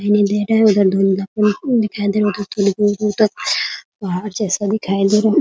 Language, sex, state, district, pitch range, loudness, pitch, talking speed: Hindi, female, Bihar, Muzaffarpur, 200-210 Hz, -17 LUFS, 205 Hz, 200 wpm